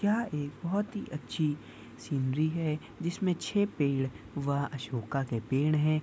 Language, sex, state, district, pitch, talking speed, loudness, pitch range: Hindi, female, Bihar, Muzaffarpur, 145 Hz, 150 wpm, -32 LUFS, 135-165 Hz